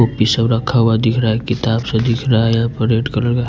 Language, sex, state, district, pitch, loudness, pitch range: Hindi, male, Punjab, Fazilka, 115 Hz, -16 LUFS, 115-120 Hz